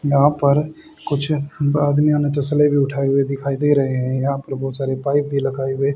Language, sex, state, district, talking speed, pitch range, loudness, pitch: Hindi, male, Haryana, Rohtak, 200 wpm, 135-145 Hz, -19 LUFS, 140 Hz